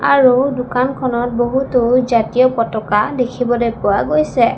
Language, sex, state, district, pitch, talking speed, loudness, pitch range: Assamese, female, Assam, Sonitpur, 250 Hz, 105 wpm, -15 LUFS, 235-255 Hz